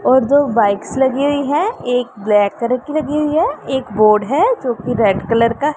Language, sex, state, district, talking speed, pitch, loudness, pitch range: Hindi, female, Punjab, Pathankot, 220 wpm, 250 Hz, -16 LUFS, 225-285 Hz